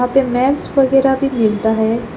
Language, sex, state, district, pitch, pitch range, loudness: Hindi, female, Arunachal Pradesh, Papum Pare, 250 Hz, 220-270 Hz, -15 LUFS